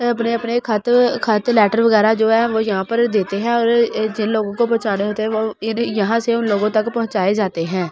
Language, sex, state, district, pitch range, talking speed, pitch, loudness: Hindi, female, Delhi, New Delhi, 210-235 Hz, 240 wpm, 220 Hz, -17 LUFS